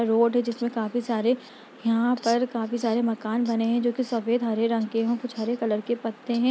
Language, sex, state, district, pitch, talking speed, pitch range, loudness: Hindi, female, Bihar, Gaya, 235 Hz, 240 wpm, 225-240 Hz, -26 LUFS